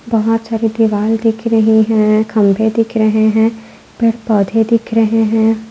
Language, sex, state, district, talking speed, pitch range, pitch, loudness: Hindi, female, Maharashtra, Aurangabad, 155 wpm, 220-225 Hz, 225 Hz, -13 LUFS